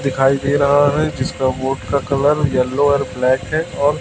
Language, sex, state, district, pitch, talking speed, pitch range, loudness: Hindi, male, Chhattisgarh, Raipur, 140 Hz, 195 wpm, 130-145 Hz, -17 LUFS